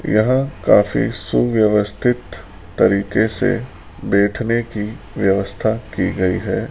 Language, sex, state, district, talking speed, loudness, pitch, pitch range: Hindi, male, Rajasthan, Jaipur, 100 wpm, -18 LUFS, 105 Hz, 95-115 Hz